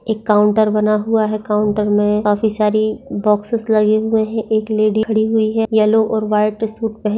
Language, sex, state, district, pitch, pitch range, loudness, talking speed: Hindi, female, Maharashtra, Pune, 215 Hz, 210-220 Hz, -16 LUFS, 190 wpm